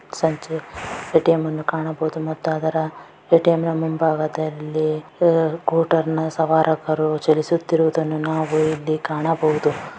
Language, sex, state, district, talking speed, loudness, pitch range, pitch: Kannada, female, Karnataka, Dakshina Kannada, 90 wpm, -20 LUFS, 155-160 Hz, 160 Hz